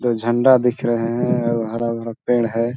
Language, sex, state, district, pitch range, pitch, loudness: Hindi, male, Chhattisgarh, Balrampur, 115-120 Hz, 120 Hz, -19 LUFS